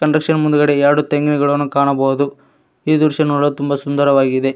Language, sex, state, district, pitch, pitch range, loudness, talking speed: Kannada, male, Karnataka, Koppal, 145 Hz, 140-150 Hz, -15 LUFS, 145 wpm